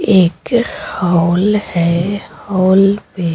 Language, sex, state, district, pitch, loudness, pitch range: Hindi, female, Bihar, Patna, 190 Hz, -14 LUFS, 175-205 Hz